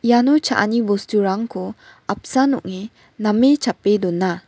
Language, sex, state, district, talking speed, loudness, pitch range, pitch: Garo, female, Meghalaya, West Garo Hills, 105 wpm, -18 LUFS, 195-255 Hz, 215 Hz